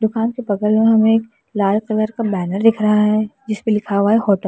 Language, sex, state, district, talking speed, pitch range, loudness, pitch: Hindi, female, Uttar Pradesh, Lalitpur, 255 wpm, 205-225 Hz, -17 LUFS, 215 Hz